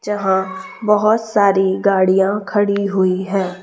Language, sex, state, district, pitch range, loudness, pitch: Hindi, female, Chhattisgarh, Raipur, 190-205 Hz, -16 LUFS, 195 Hz